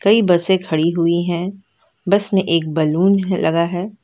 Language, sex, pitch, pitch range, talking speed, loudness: Hindi, female, 180 Hz, 170-195 Hz, 180 wpm, -17 LUFS